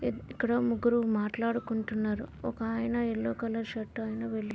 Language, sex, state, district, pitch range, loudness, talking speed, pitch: Telugu, female, Andhra Pradesh, Visakhapatnam, 215-235 Hz, -32 LUFS, 160 wpm, 225 Hz